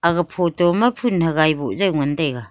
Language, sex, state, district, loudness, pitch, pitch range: Wancho, female, Arunachal Pradesh, Longding, -18 LUFS, 170 Hz, 155-180 Hz